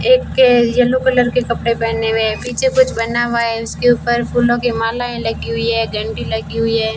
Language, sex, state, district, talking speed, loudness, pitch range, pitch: Hindi, female, Rajasthan, Bikaner, 215 wpm, -16 LUFS, 225-245 Hz, 235 Hz